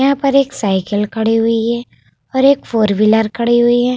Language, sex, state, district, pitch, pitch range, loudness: Hindi, female, Uttar Pradesh, Budaun, 230 Hz, 220-255 Hz, -14 LUFS